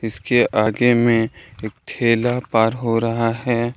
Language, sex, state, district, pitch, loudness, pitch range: Hindi, male, Jharkhand, Deoghar, 115 Hz, -18 LUFS, 110-120 Hz